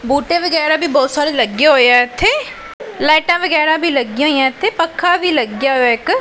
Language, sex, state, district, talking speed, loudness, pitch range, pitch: Punjabi, female, Punjab, Pathankot, 195 wpm, -13 LUFS, 265-335 Hz, 300 Hz